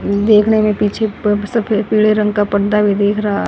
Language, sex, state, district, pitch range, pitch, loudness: Hindi, female, Haryana, Jhajjar, 205-215 Hz, 210 Hz, -14 LUFS